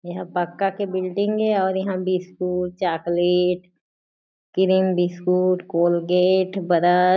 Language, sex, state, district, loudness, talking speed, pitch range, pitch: Chhattisgarhi, female, Chhattisgarh, Jashpur, -21 LUFS, 115 wpm, 175-190 Hz, 180 Hz